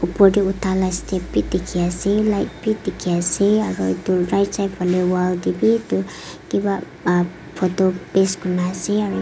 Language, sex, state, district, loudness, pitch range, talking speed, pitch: Nagamese, female, Nagaland, Kohima, -20 LUFS, 175-195 Hz, 175 wpm, 185 Hz